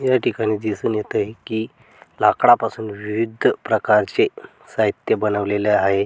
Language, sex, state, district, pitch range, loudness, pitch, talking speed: Marathi, male, Maharashtra, Dhule, 105-110 Hz, -20 LUFS, 105 Hz, 120 wpm